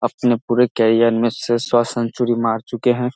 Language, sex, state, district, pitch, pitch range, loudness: Hindi, male, Bihar, Samastipur, 120 Hz, 115-120 Hz, -18 LUFS